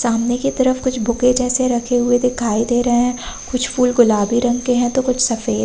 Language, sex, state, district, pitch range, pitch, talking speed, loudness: Hindi, female, Uttar Pradesh, Hamirpur, 235-250 Hz, 245 Hz, 225 wpm, -17 LUFS